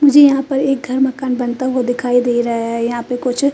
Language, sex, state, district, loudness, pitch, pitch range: Hindi, female, Chandigarh, Chandigarh, -16 LUFS, 255 Hz, 245-270 Hz